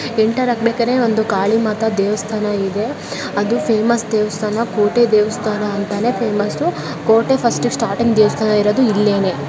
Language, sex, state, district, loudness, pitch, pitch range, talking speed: Kannada, female, Karnataka, Shimoga, -16 LUFS, 215 Hz, 210-230 Hz, 135 wpm